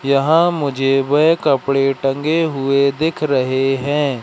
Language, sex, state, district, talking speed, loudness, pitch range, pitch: Hindi, male, Madhya Pradesh, Katni, 130 wpm, -16 LUFS, 135-155 Hz, 140 Hz